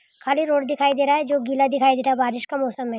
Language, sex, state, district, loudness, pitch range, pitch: Hindi, female, Bihar, Jamui, -21 LUFS, 265-285 Hz, 275 Hz